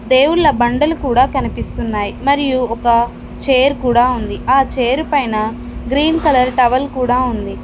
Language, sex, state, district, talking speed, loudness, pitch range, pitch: Telugu, female, Telangana, Mahabubabad, 135 wpm, -15 LUFS, 240-275 Hz, 255 Hz